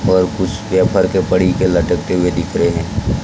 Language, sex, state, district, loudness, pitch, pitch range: Hindi, male, Gujarat, Gandhinagar, -15 LUFS, 95 Hz, 90-95 Hz